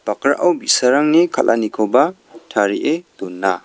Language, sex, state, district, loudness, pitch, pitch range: Garo, male, Meghalaya, West Garo Hills, -16 LUFS, 115 Hz, 100-155 Hz